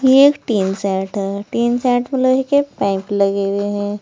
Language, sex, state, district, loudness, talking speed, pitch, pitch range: Hindi, female, Uttar Pradesh, Saharanpur, -17 LUFS, 210 wpm, 205 Hz, 200-260 Hz